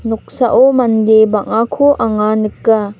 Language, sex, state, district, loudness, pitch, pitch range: Garo, female, Meghalaya, North Garo Hills, -12 LUFS, 220 Hz, 215-240 Hz